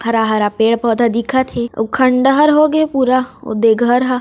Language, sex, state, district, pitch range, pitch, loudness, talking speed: Chhattisgarhi, female, Chhattisgarh, Raigarh, 230-260 Hz, 245 Hz, -14 LUFS, 185 wpm